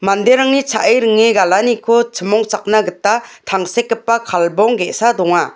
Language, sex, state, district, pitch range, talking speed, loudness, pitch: Garo, female, Meghalaya, West Garo Hills, 195-235 Hz, 110 wpm, -14 LUFS, 220 Hz